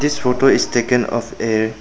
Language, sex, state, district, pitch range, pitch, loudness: English, male, Arunachal Pradesh, Papum Pare, 110-135 Hz, 125 Hz, -17 LUFS